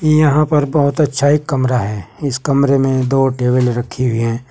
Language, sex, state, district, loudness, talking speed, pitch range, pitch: Hindi, male, Uttar Pradesh, Saharanpur, -15 LUFS, 200 wpm, 125-145 Hz, 135 Hz